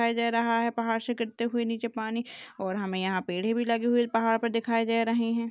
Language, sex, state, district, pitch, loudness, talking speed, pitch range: Hindi, female, Rajasthan, Churu, 230 Hz, -28 LUFS, 250 wpm, 225-235 Hz